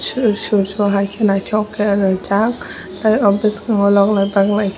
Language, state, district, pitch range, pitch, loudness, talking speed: Kokborok, Tripura, West Tripura, 200-215 Hz, 205 Hz, -16 LUFS, 150 wpm